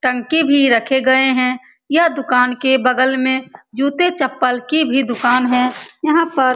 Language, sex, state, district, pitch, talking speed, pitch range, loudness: Hindi, female, Bihar, Saran, 260 Hz, 165 wpm, 250-280 Hz, -15 LUFS